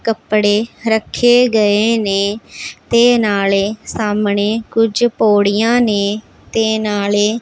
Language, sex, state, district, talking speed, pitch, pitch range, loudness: Punjabi, female, Punjab, Pathankot, 95 wpm, 215 Hz, 205-225 Hz, -14 LUFS